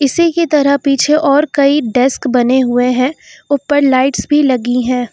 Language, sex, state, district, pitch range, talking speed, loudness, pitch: Hindi, female, Uttar Pradesh, Lucknow, 250-290 Hz, 175 wpm, -12 LUFS, 275 Hz